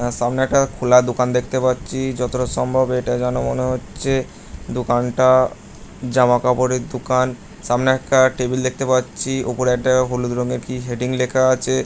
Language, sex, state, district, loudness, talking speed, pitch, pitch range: Bengali, male, West Bengal, Jhargram, -19 LUFS, 145 wpm, 125 Hz, 125-130 Hz